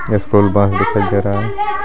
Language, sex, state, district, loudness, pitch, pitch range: Hindi, male, Jharkhand, Garhwa, -15 LUFS, 105 Hz, 100-110 Hz